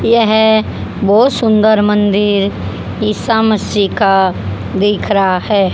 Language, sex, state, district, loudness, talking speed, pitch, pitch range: Hindi, female, Haryana, Charkhi Dadri, -13 LUFS, 105 wpm, 205 Hz, 195-220 Hz